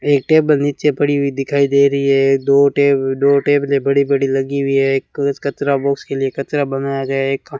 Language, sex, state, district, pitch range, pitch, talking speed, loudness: Hindi, male, Rajasthan, Bikaner, 135-140 Hz, 140 Hz, 235 wpm, -16 LUFS